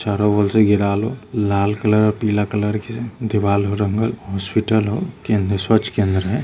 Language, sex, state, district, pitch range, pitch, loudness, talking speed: Hindi, male, Bihar, Lakhisarai, 100-110 Hz, 105 Hz, -19 LUFS, 185 wpm